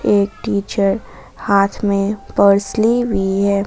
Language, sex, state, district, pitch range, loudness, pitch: Hindi, female, Jharkhand, Ranchi, 200-210 Hz, -16 LUFS, 200 Hz